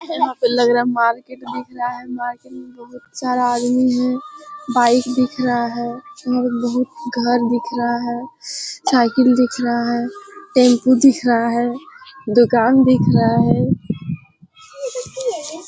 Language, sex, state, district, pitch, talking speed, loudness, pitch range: Hindi, female, Bihar, Jamui, 245 Hz, 140 wpm, -17 LUFS, 240-265 Hz